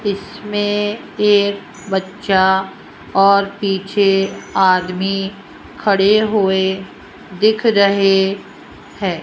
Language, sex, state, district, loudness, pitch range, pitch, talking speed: Hindi, female, Rajasthan, Jaipur, -16 LUFS, 190-205 Hz, 195 Hz, 70 wpm